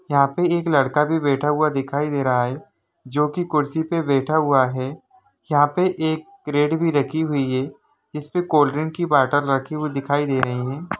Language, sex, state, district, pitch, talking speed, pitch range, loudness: Hindi, male, Jharkhand, Jamtara, 150 Hz, 200 wpm, 140-160 Hz, -21 LUFS